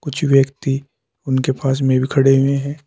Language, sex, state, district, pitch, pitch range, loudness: Hindi, male, Uttar Pradesh, Saharanpur, 135 Hz, 130-140 Hz, -17 LUFS